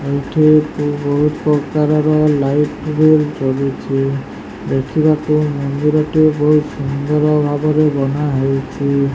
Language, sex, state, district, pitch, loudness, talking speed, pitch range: Odia, male, Odisha, Sambalpur, 150 Hz, -15 LUFS, 90 wpm, 140-150 Hz